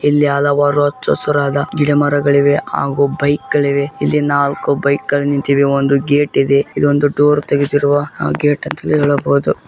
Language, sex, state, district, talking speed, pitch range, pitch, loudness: Kannada, male, Karnataka, Bijapur, 135 wpm, 140-145 Hz, 145 Hz, -14 LUFS